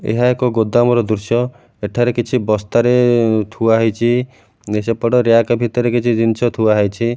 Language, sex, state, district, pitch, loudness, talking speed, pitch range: Odia, male, Odisha, Malkangiri, 115 Hz, -15 LUFS, 125 wpm, 110-120 Hz